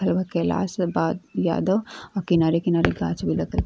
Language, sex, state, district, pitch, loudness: Bhojpuri, female, Uttar Pradesh, Ghazipur, 170 Hz, -23 LUFS